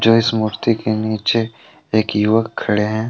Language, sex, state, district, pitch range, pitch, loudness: Hindi, male, Jharkhand, Deoghar, 110-115 Hz, 110 Hz, -18 LUFS